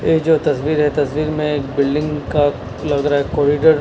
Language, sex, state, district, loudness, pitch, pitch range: Hindi, male, Punjab, Kapurthala, -17 LUFS, 150 Hz, 145-155 Hz